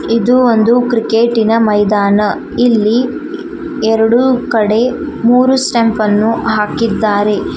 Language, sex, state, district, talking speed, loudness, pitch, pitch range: Kannada, female, Karnataka, Koppal, 85 wpm, -12 LUFS, 230 Hz, 215-250 Hz